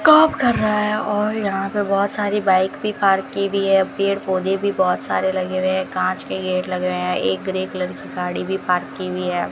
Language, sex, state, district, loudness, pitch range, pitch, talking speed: Hindi, female, Rajasthan, Bikaner, -20 LUFS, 185-205 Hz, 190 Hz, 240 wpm